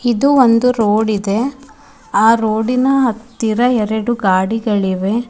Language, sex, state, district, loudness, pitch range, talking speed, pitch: Kannada, female, Karnataka, Bidar, -15 LUFS, 215-245 Hz, 115 wpm, 230 Hz